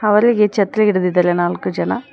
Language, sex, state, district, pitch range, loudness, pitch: Kannada, female, Karnataka, Koppal, 180-215 Hz, -16 LUFS, 210 Hz